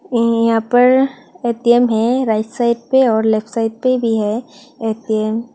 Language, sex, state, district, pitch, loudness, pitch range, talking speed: Hindi, female, Tripura, West Tripura, 235 Hz, -16 LUFS, 225-250 Hz, 160 wpm